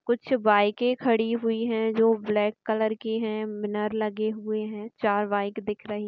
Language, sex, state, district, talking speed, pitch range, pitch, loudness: Hindi, female, Bihar, East Champaran, 175 wpm, 210-225 Hz, 215 Hz, -26 LUFS